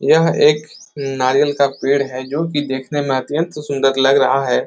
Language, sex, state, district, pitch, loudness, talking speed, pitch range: Hindi, male, Uttar Pradesh, Etah, 140 Hz, -17 LUFS, 195 wpm, 135-150 Hz